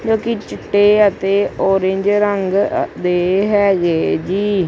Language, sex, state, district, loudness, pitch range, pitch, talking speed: Punjabi, male, Punjab, Kapurthala, -16 LUFS, 190-205 Hz, 200 Hz, 115 wpm